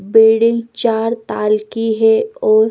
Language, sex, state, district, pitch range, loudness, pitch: Hindi, female, Bihar, West Champaran, 220-235 Hz, -15 LUFS, 225 Hz